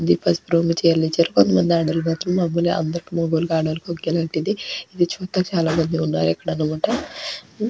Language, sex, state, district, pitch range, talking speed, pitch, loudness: Telugu, female, Andhra Pradesh, Chittoor, 160-175 Hz, 115 wpm, 165 Hz, -21 LUFS